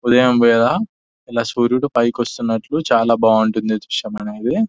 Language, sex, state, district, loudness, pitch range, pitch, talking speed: Telugu, male, Telangana, Nalgonda, -17 LUFS, 110-125 Hz, 115 Hz, 130 wpm